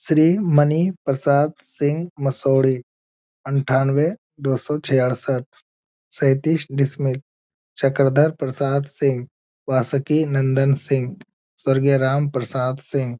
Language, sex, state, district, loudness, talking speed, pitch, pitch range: Hindi, male, Bihar, Jamui, -20 LUFS, 100 wpm, 135 Hz, 130-145 Hz